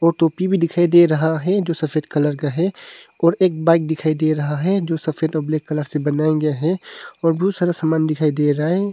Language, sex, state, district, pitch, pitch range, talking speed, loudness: Hindi, male, Arunachal Pradesh, Longding, 160 Hz, 155-175 Hz, 240 wpm, -19 LUFS